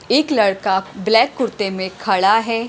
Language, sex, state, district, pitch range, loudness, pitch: Hindi, female, Punjab, Pathankot, 190-230 Hz, -17 LUFS, 215 Hz